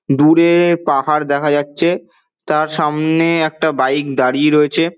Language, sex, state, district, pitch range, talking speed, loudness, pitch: Bengali, male, West Bengal, Dakshin Dinajpur, 145-165 Hz, 120 wpm, -14 LUFS, 150 Hz